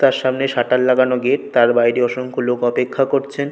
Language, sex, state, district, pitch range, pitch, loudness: Bengali, male, West Bengal, North 24 Parganas, 125-135 Hz, 125 Hz, -17 LUFS